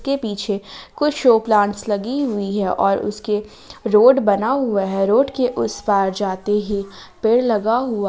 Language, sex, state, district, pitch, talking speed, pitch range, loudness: Hindi, female, Jharkhand, Palamu, 210 Hz, 170 wpm, 200-245 Hz, -18 LUFS